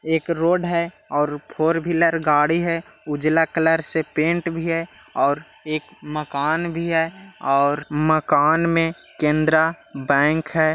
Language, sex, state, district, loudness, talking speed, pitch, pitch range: Hindi, male, Bihar, Jahanabad, -21 LUFS, 135 wpm, 160 Hz, 150-165 Hz